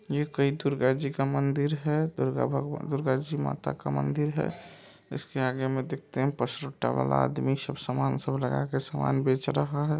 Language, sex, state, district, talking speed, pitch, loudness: Maithili, male, Bihar, Supaul, 190 wpm, 135 Hz, -29 LUFS